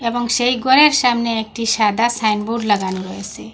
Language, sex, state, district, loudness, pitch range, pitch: Bengali, female, Assam, Hailakandi, -16 LUFS, 210-240 Hz, 230 Hz